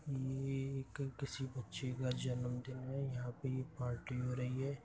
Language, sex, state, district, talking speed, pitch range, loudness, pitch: Hindi, male, Uttar Pradesh, Budaun, 200 wpm, 125-135 Hz, -42 LUFS, 130 Hz